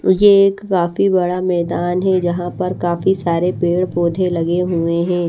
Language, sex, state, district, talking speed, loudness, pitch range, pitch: Hindi, female, Haryana, Charkhi Dadri, 170 wpm, -16 LUFS, 175-185 Hz, 180 Hz